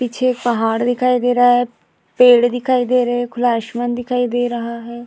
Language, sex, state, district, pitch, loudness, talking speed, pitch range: Hindi, female, Bihar, Vaishali, 245 Hz, -16 LUFS, 215 wpm, 240-245 Hz